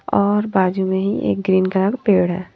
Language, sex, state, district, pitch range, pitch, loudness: Hindi, female, Haryana, Charkhi Dadri, 185-200 Hz, 190 Hz, -18 LUFS